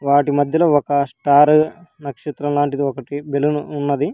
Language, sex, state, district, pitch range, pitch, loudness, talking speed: Telugu, female, Telangana, Hyderabad, 140-150 Hz, 145 Hz, -17 LUFS, 130 wpm